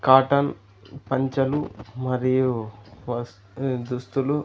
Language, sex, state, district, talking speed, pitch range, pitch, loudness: Telugu, male, Andhra Pradesh, Sri Satya Sai, 65 wpm, 120-135 Hz, 130 Hz, -24 LUFS